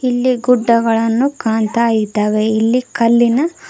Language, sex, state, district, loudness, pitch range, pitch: Kannada, female, Karnataka, Koppal, -14 LUFS, 220-250 Hz, 235 Hz